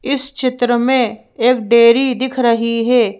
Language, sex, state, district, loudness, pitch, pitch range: Hindi, female, Madhya Pradesh, Bhopal, -14 LUFS, 245 Hz, 235-255 Hz